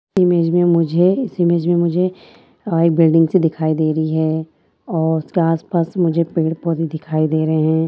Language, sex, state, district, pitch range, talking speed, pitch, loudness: Hindi, female, Bihar, Madhepura, 160-175 Hz, 180 wpm, 165 Hz, -17 LUFS